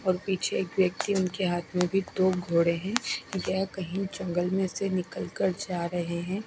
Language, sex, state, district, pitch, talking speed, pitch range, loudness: Hindi, female, Punjab, Fazilka, 185 Hz, 195 wpm, 175-195 Hz, -29 LUFS